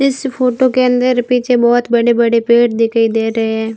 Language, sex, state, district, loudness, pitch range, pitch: Hindi, female, Rajasthan, Barmer, -13 LUFS, 230-250 Hz, 240 Hz